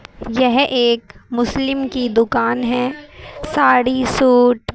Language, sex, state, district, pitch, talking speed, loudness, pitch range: Hindi, female, Haryana, Charkhi Dadri, 250 Hz, 100 wpm, -16 LUFS, 240-260 Hz